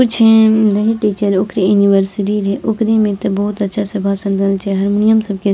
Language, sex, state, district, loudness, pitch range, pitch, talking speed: Maithili, female, Bihar, Purnia, -14 LUFS, 200-220 Hz, 205 Hz, 215 wpm